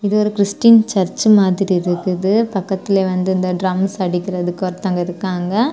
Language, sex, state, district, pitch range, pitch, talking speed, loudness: Tamil, female, Tamil Nadu, Kanyakumari, 185-200 Hz, 190 Hz, 135 wpm, -16 LUFS